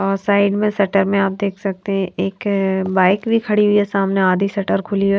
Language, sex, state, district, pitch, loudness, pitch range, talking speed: Hindi, female, Haryana, Charkhi Dadri, 195 Hz, -17 LUFS, 195-200 Hz, 230 wpm